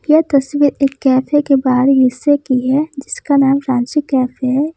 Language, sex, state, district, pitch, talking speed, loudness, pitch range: Hindi, female, Jharkhand, Ranchi, 275 Hz, 175 wpm, -14 LUFS, 260-290 Hz